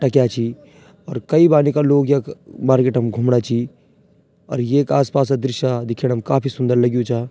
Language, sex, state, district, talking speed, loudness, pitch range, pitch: Garhwali, male, Uttarakhand, Tehri Garhwal, 190 wpm, -18 LUFS, 120-140 Hz, 130 Hz